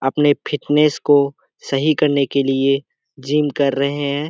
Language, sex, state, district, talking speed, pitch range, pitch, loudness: Hindi, male, Bihar, Kishanganj, 155 wpm, 140-150 Hz, 145 Hz, -18 LUFS